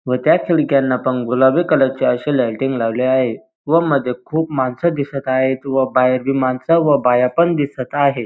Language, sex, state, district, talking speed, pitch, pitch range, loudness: Marathi, male, Maharashtra, Dhule, 180 wpm, 130 Hz, 125-145 Hz, -16 LUFS